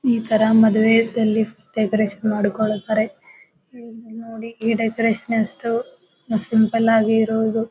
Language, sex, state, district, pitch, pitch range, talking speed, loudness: Kannada, female, Karnataka, Bijapur, 225 Hz, 220-230 Hz, 100 wpm, -19 LUFS